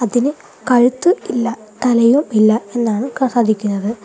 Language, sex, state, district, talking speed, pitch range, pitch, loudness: Malayalam, female, Kerala, Kollam, 105 wpm, 215-255 Hz, 235 Hz, -16 LUFS